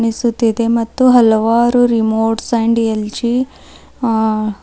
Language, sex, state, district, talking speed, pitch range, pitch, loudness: Kannada, female, Karnataka, Bidar, 90 wpm, 220-240 Hz, 230 Hz, -14 LUFS